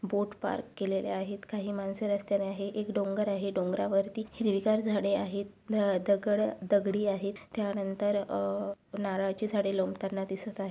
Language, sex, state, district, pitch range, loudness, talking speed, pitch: Marathi, female, Maharashtra, Sindhudurg, 195-205 Hz, -32 LUFS, 150 wpm, 200 Hz